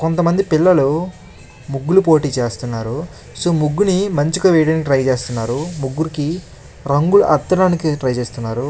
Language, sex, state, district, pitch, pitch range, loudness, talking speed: Telugu, male, Andhra Pradesh, Krishna, 150 Hz, 130-170 Hz, -16 LUFS, 115 wpm